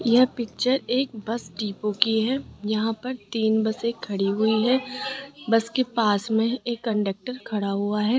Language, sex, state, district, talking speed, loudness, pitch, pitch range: Hindi, female, Rajasthan, Jaipur, 170 wpm, -25 LUFS, 225 Hz, 215-250 Hz